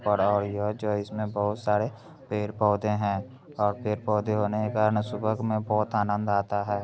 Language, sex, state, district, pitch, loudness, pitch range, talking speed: Hindi, male, Bihar, Begusarai, 105 Hz, -27 LUFS, 105-110 Hz, 150 wpm